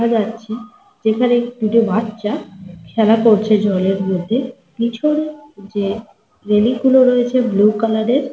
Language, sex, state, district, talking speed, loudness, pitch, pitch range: Bengali, female, Jharkhand, Sahebganj, 120 wpm, -16 LUFS, 225 Hz, 210-245 Hz